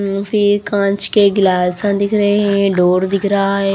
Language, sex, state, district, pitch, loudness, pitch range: Hindi, female, Haryana, Rohtak, 200 Hz, -14 LUFS, 195-205 Hz